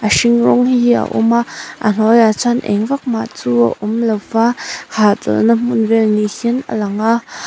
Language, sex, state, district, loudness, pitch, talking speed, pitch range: Mizo, female, Mizoram, Aizawl, -14 LUFS, 225 Hz, 215 wpm, 210-235 Hz